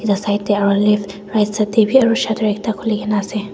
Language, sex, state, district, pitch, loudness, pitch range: Nagamese, female, Nagaland, Dimapur, 210 Hz, -17 LUFS, 205-220 Hz